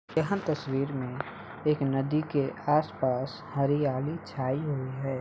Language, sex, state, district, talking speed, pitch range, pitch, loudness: Hindi, male, Bihar, Samastipur, 150 wpm, 135-150 Hz, 140 Hz, -30 LUFS